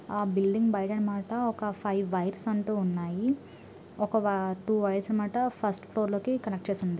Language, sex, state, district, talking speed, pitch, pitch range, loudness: Telugu, female, Andhra Pradesh, Guntur, 170 wpm, 205 Hz, 195-220 Hz, -30 LUFS